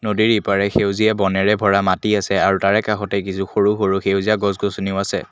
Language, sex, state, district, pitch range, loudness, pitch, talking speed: Assamese, male, Assam, Kamrup Metropolitan, 95-105 Hz, -18 LUFS, 100 Hz, 190 wpm